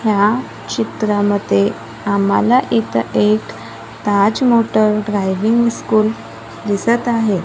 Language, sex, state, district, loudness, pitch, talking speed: Marathi, female, Maharashtra, Gondia, -16 LUFS, 205 Hz, 90 wpm